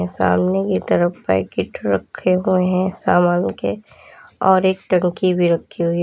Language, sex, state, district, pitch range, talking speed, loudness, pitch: Hindi, female, Uttar Pradesh, Lalitpur, 150-185 Hz, 160 wpm, -18 LUFS, 175 Hz